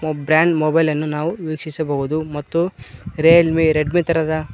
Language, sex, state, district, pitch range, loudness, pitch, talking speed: Kannada, male, Karnataka, Koppal, 155-165 Hz, -18 LUFS, 155 Hz, 145 wpm